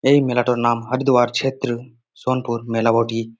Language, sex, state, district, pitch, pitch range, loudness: Bengali, male, West Bengal, Jalpaiguri, 120 Hz, 115-130 Hz, -19 LUFS